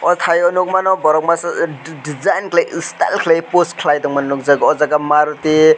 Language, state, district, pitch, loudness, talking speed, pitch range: Kokborok, Tripura, West Tripura, 155 Hz, -15 LUFS, 205 wpm, 150-175 Hz